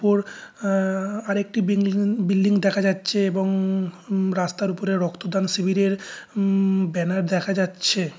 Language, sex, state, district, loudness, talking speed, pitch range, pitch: Bengali, male, West Bengal, North 24 Parganas, -23 LUFS, 140 wpm, 190-200 Hz, 195 Hz